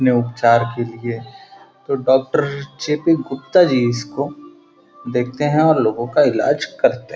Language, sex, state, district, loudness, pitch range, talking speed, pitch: Hindi, male, Uttar Pradesh, Gorakhpur, -18 LUFS, 120-165 Hz, 150 wpm, 140 Hz